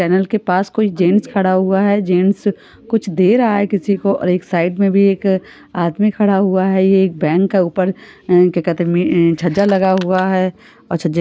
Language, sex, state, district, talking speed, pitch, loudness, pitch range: Hindi, female, Chhattisgarh, Balrampur, 195 wpm, 190 Hz, -15 LUFS, 180-200 Hz